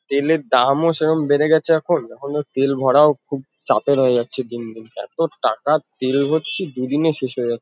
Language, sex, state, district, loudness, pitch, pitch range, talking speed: Bengali, male, West Bengal, Kolkata, -19 LUFS, 140 Hz, 130-155 Hz, 195 wpm